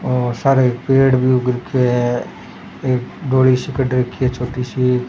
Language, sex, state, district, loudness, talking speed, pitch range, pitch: Rajasthani, male, Rajasthan, Churu, -17 LUFS, 175 wpm, 125-130 Hz, 125 Hz